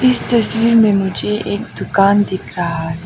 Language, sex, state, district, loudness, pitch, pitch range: Hindi, female, Arunachal Pradesh, Papum Pare, -15 LUFS, 205 Hz, 185-225 Hz